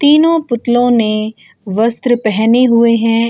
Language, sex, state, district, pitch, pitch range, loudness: Hindi, female, Bihar, Gopalganj, 230 Hz, 220-245 Hz, -12 LUFS